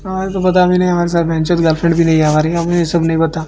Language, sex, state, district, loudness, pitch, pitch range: Hindi, male, Odisha, Malkangiri, -14 LUFS, 170 Hz, 160-180 Hz